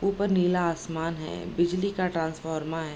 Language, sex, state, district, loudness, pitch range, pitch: Hindi, female, Bihar, Darbhanga, -28 LUFS, 160-185 Hz, 170 Hz